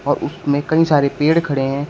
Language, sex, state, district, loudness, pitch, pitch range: Hindi, male, Uttar Pradesh, Shamli, -17 LUFS, 145 Hz, 140-160 Hz